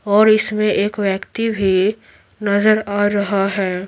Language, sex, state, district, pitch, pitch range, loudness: Hindi, female, Bihar, Patna, 205 Hz, 195-215 Hz, -17 LUFS